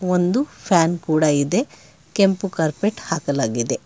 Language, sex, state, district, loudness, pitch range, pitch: Kannada, male, Karnataka, Bangalore, -20 LUFS, 155-195 Hz, 170 Hz